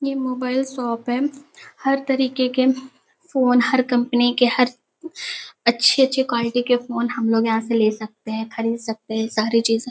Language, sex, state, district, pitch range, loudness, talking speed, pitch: Hindi, female, Uttar Pradesh, Hamirpur, 230-265 Hz, -20 LUFS, 170 wpm, 245 Hz